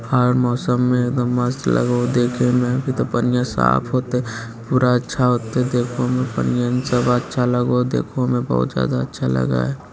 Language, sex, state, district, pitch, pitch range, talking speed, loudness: Hindi, male, Bihar, Lakhisarai, 125 Hz, 120-125 Hz, 180 wpm, -19 LUFS